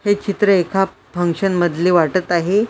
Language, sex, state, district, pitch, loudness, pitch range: Marathi, female, Maharashtra, Washim, 185 Hz, -17 LUFS, 175-200 Hz